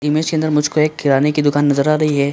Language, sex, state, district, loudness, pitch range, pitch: Hindi, male, Chhattisgarh, Bilaspur, -16 LUFS, 145-155 Hz, 150 Hz